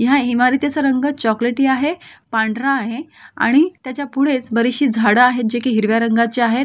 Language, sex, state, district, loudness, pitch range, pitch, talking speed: Marathi, female, Maharashtra, Solapur, -17 LUFS, 230-275 Hz, 255 Hz, 160 wpm